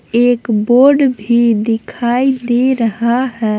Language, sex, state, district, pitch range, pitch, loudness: Hindi, female, Jharkhand, Palamu, 225-250 Hz, 240 Hz, -13 LUFS